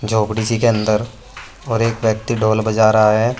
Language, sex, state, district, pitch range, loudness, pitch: Hindi, male, Uttar Pradesh, Saharanpur, 110-115 Hz, -16 LUFS, 110 Hz